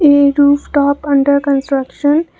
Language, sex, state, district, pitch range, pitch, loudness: English, female, Assam, Kamrup Metropolitan, 280-290 Hz, 285 Hz, -13 LUFS